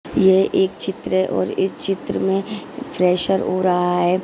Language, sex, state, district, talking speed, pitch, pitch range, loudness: Hindi, female, Maharashtra, Dhule, 170 wpm, 190 Hz, 180-195 Hz, -19 LUFS